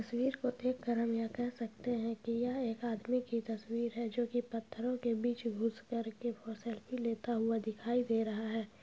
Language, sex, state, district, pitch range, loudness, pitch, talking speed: Hindi, female, Bihar, Begusarai, 225-245 Hz, -37 LUFS, 235 Hz, 205 wpm